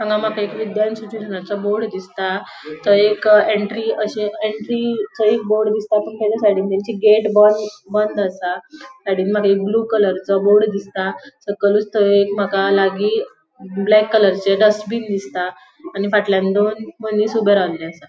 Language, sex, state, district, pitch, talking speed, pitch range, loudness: Konkani, female, Goa, North and South Goa, 210 Hz, 155 wpm, 195-215 Hz, -17 LUFS